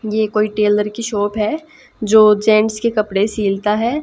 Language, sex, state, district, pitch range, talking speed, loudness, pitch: Hindi, female, Haryana, Jhajjar, 210-220 Hz, 180 wpm, -16 LUFS, 215 Hz